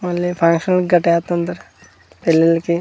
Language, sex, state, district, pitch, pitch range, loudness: Telugu, male, Andhra Pradesh, Manyam, 170 Hz, 165-175 Hz, -16 LUFS